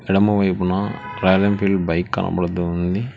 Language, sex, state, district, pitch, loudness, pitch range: Telugu, male, Telangana, Hyderabad, 95 Hz, -19 LUFS, 90-100 Hz